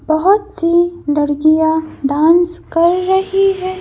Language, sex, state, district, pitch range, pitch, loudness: Hindi, female, Madhya Pradesh, Bhopal, 315-370 Hz, 340 Hz, -14 LUFS